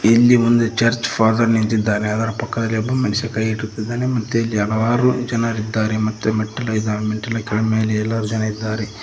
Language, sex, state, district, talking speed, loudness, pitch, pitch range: Kannada, male, Karnataka, Koppal, 160 wpm, -19 LUFS, 110 Hz, 110-115 Hz